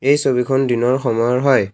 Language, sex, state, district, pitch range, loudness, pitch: Assamese, male, Assam, Kamrup Metropolitan, 120-135 Hz, -16 LUFS, 130 Hz